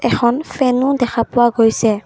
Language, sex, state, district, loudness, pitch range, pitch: Assamese, female, Assam, Kamrup Metropolitan, -15 LUFS, 230-255 Hz, 240 Hz